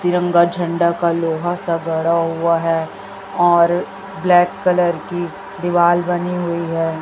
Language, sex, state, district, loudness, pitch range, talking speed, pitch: Hindi, female, Chhattisgarh, Raipur, -17 LUFS, 170-180 Hz, 135 wpm, 175 Hz